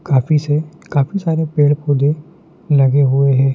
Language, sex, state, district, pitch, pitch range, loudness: Hindi, male, Madhya Pradesh, Dhar, 145 Hz, 140-155 Hz, -15 LUFS